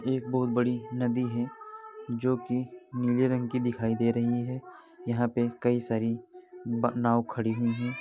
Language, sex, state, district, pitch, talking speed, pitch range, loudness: Hindi, male, Uttar Pradesh, Varanasi, 120 Hz, 180 wpm, 120-125 Hz, -29 LUFS